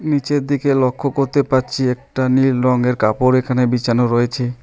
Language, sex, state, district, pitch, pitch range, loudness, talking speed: Bengali, male, West Bengal, Alipurduar, 130 Hz, 125-140 Hz, -17 LUFS, 155 wpm